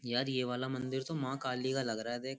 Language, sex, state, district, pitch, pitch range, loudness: Hindi, male, Uttar Pradesh, Jyotiba Phule Nagar, 130 Hz, 125-135 Hz, -36 LUFS